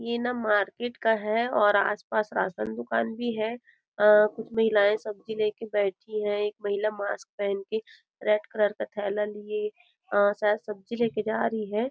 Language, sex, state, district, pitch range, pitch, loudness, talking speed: Hindi, female, Chhattisgarh, Rajnandgaon, 205-225 Hz, 210 Hz, -27 LUFS, 175 wpm